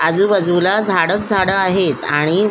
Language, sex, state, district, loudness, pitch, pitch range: Marathi, female, Maharashtra, Solapur, -15 LUFS, 190 Hz, 175-200 Hz